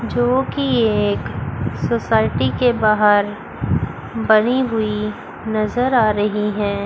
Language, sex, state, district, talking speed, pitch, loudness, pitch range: Hindi, female, Chandigarh, Chandigarh, 95 wpm, 210 Hz, -18 LUFS, 200-230 Hz